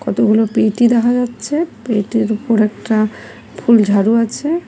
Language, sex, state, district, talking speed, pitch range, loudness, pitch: Bengali, female, West Bengal, Cooch Behar, 115 wpm, 215-245 Hz, -15 LUFS, 225 Hz